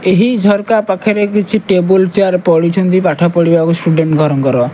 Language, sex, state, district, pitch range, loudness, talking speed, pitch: Odia, male, Odisha, Malkangiri, 170-205 Hz, -12 LUFS, 140 wpm, 185 Hz